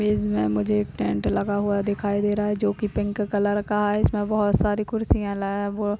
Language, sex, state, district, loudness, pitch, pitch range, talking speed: Hindi, female, Uttar Pradesh, Hamirpur, -24 LUFS, 205 Hz, 195-210 Hz, 180 wpm